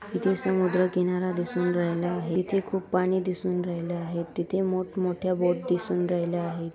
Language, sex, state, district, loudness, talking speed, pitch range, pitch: Marathi, female, Maharashtra, Dhule, -27 LUFS, 170 wpm, 175-185 Hz, 180 Hz